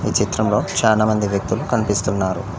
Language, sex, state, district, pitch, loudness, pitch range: Telugu, male, Telangana, Mahabubabad, 105 Hz, -19 LUFS, 100-110 Hz